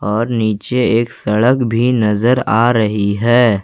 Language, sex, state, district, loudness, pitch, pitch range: Hindi, male, Jharkhand, Ranchi, -14 LUFS, 115 Hz, 105-120 Hz